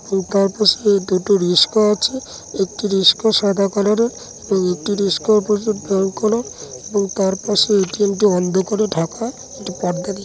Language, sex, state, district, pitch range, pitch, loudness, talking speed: Bengali, male, West Bengal, Dakshin Dinajpur, 190-210 Hz, 200 Hz, -17 LUFS, 145 wpm